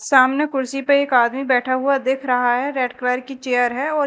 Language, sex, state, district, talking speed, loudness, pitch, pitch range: Hindi, female, Madhya Pradesh, Dhar, 235 wpm, -19 LUFS, 260 Hz, 250-275 Hz